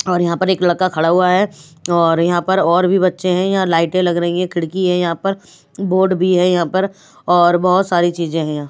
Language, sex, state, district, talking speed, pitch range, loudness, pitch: Hindi, female, Bihar, West Champaran, 240 wpm, 170-185 Hz, -15 LUFS, 180 Hz